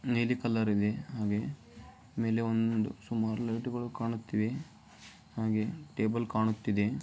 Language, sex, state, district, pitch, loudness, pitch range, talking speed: Kannada, male, Karnataka, Dharwad, 115 Hz, -33 LUFS, 110-115 Hz, 70 wpm